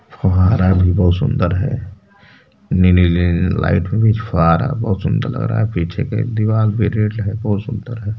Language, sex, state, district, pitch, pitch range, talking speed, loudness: Hindi, male, Uttar Pradesh, Varanasi, 105 Hz, 90-115 Hz, 160 wpm, -16 LUFS